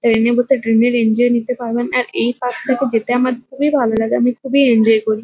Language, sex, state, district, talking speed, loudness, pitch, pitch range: Bengali, female, West Bengal, Kolkata, 285 wpm, -16 LUFS, 245 Hz, 230-250 Hz